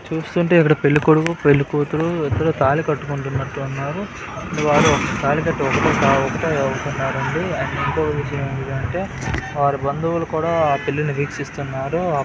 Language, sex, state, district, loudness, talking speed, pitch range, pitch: Telugu, male, Telangana, Karimnagar, -19 LUFS, 105 wpm, 140-160 Hz, 145 Hz